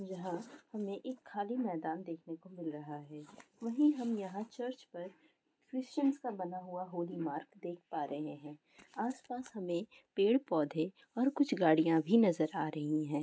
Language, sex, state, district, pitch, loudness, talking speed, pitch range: Hindi, female, Andhra Pradesh, Visakhapatnam, 185 Hz, -36 LUFS, 160 wpm, 160-245 Hz